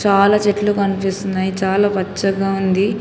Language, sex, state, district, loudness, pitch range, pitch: Telugu, female, Telangana, Hyderabad, -17 LUFS, 190-205 Hz, 195 Hz